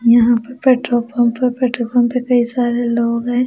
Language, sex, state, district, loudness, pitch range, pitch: Hindi, female, Punjab, Pathankot, -16 LUFS, 235-250 Hz, 240 Hz